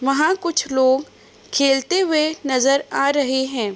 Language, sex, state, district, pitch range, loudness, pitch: Hindi, female, Uttar Pradesh, Budaun, 265-310 Hz, -19 LUFS, 275 Hz